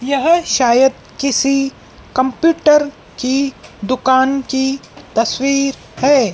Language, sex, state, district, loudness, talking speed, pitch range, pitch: Hindi, female, Madhya Pradesh, Dhar, -15 LUFS, 85 wpm, 260-275 Hz, 270 Hz